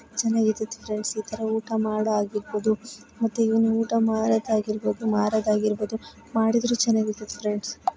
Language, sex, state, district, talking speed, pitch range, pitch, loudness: Kannada, female, Karnataka, Bijapur, 105 wpm, 215-225 Hz, 220 Hz, -25 LUFS